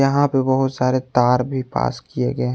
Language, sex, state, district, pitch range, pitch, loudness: Hindi, male, Jharkhand, Palamu, 125-135 Hz, 130 Hz, -19 LUFS